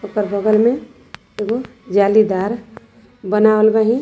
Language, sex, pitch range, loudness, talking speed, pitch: Sadri, female, 205-225 Hz, -16 LUFS, 105 wpm, 215 Hz